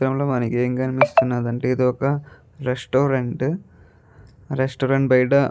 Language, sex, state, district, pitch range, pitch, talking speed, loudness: Telugu, male, Andhra Pradesh, Guntur, 120-135 Hz, 130 Hz, 130 wpm, -21 LUFS